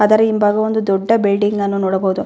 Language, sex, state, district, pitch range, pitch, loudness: Kannada, female, Karnataka, Bellary, 195-215 Hz, 205 Hz, -15 LUFS